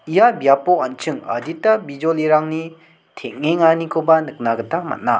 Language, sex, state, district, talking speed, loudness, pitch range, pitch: Garo, male, Meghalaya, South Garo Hills, 105 wpm, -18 LUFS, 140-165 Hz, 160 Hz